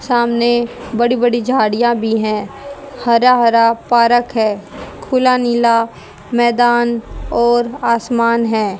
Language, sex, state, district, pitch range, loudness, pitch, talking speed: Hindi, female, Haryana, Rohtak, 230-240 Hz, -14 LUFS, 235 Hz, 110 wpm